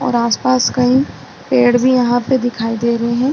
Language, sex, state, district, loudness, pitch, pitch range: Hindi, female, Uttar Pradesh, Budaun, -15 LUFS, 245 Hz, 235-250 Hz